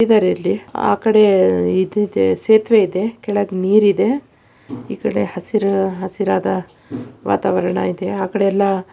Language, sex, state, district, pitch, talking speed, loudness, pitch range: Kannada, female, Karnataka, Shimoga, 195 Hz, 135 wpm, -17 LUFS, 185-210 Hz